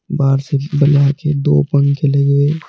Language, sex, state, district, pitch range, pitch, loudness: Hindi, male, Uttar Pradesh, Saharanpur, 140-145 Hz, 145 Hz, -14 LUFS